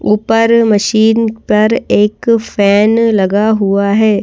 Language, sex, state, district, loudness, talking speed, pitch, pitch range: Hindi, female, Madhya Pradesh, Bhopal, -11 LUFS, 115 wpm, 215 Hz, 205-225 Hz